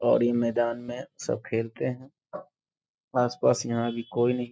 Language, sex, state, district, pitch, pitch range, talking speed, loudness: Hindi, male, Bihar, Sitamarhi, 120 Hz, 115-125 Hz, 185 wpm, -28 LUFS